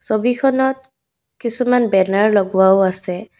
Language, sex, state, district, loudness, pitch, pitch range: Assamese, female, Assam, Kamrup Metropolitan, -16 LUFS, 215 Hz, 190-250 Hz